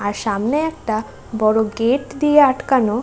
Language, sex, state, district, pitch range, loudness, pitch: Bengali, female, West Bengal, North 24 Parganas, 215-275 Hz, -18 LUFS, 230 Hz